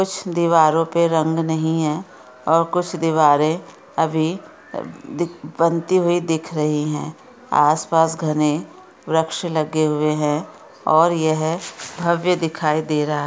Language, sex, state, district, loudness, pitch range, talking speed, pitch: Hindi, female, Chhattisgarh, Raigarh, -19 LUFS, 155-170 Hz, 135 wpm, 160 Hz